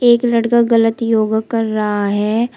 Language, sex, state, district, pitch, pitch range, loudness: Hindi, female, Uttar Pradesh, Shamli, 225 Hz, 215-235 Hz, -15 LUFS